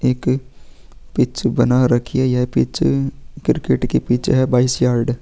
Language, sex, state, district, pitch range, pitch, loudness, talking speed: Hindi, male, Chhattisgarh, Sukma, 120-130 Hz, 125 Hz, -18 LUFS, 160 wpm